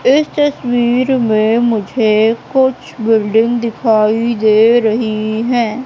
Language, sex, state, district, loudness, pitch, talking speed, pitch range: Hindi, female, Madhya Pradesh, Katni, -13 LUFS, 230 Hz, 100 wpm, 220-250 Hz